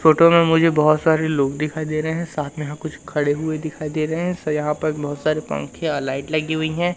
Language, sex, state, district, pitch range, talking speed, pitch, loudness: Hindi, male, Madhya Pradesh, Umaria, 150-160 Hz, 265 wpm, 155 Hz, -20 LUFS